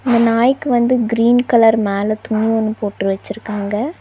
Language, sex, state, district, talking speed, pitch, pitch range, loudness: Tamil, female, Tamil Nadu, Nilgiris, 150 wpm, 225 Hz, 210-240 Hz, -16 LUFS